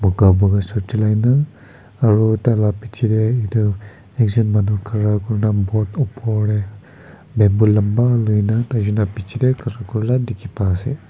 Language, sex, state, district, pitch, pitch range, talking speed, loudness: Nagamese, male, Nagaland, Kohima, 110 Hz, 105-115 Hz, 150 wpm, -18 LUFS